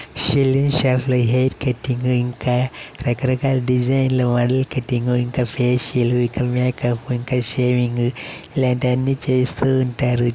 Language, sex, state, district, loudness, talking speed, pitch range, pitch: Telugu, male, Andhra Pradesh, Chittoor, -19 LUFS, 120 wpm, 125-130 Hz, 125 Hz